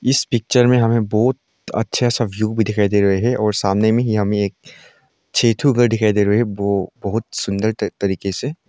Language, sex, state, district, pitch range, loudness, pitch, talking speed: Hindi, male, Arunachal Pradesh, Longding, 100-120 Hz, -18 LUFS, 110 Hz, 220 wpm